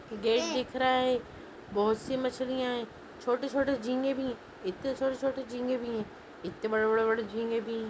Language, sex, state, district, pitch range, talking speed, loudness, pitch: Hindi, female, Chhattisgarh, Sarguja, 225-260 Hz, 175 wpm, -31 LUFS, 245 Hz